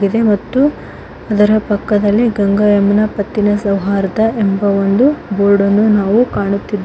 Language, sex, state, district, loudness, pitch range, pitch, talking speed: Kannada, female, Karnataka, Koppal, -13 LUFS, 200-215 Hz, 205 Hz, 115 wpm